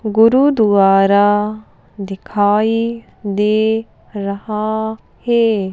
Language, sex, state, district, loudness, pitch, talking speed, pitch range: Hindi, female, Madhya Pradesh, Bhopal, -15 LUFS, 215 Hz, 50 wpm, 200-225 Hz